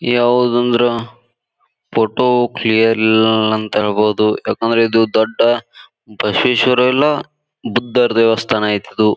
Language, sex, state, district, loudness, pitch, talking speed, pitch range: Kannada, male, Karnataka, Bijapur, -15 LUFS, 115 Hz, 100 wpm, 110-120 Hz